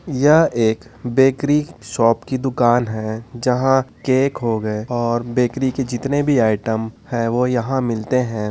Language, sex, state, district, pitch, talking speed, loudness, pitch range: Hindi, male, Chhattisgarh, Korba, 120 Hz, 155 wpm, -19 LUFS, 115-135 Hz